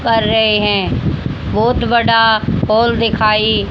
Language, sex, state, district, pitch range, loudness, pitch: Hindi, female, Haryana, Jhajjar, 215-230 Hz, -13 LUFS, 225 Hz